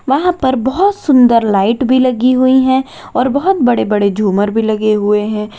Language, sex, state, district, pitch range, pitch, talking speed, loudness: Hindi, female, Uttar Pradesh, Lalitpur, 215-260 Hz, 250 Hz, 195 wpm, -12 LUFS